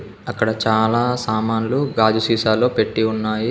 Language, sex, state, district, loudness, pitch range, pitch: Telugu, male, Telangana, Komaram Bheem, -18 LUFS, 110-120 Hz, 110 Hz